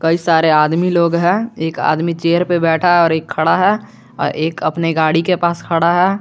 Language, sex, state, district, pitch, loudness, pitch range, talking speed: Hindi, male, Jharkhand, Garhwa, 170 Hz, -15 LUFS, 160-175 Hz, 220 wpm